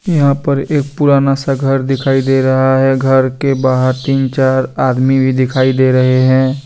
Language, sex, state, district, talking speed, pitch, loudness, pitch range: Hindi, male, Jharkhand, Deoghar, 190 wpm, 135 Hz, -12 LUFS, 130-135 Hz